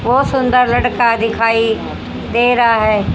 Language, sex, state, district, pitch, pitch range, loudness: Hindi, female, Haryana, Jhajjar, 235 Hz, 225-245 Hz, -13 LUFS